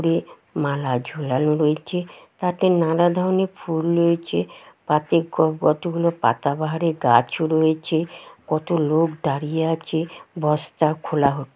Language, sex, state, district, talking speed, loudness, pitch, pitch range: Bengali, female, West Bengal, Jalpaiguri, 110 wpm, -21 LUFS, 160 Hz, 150-170 Hz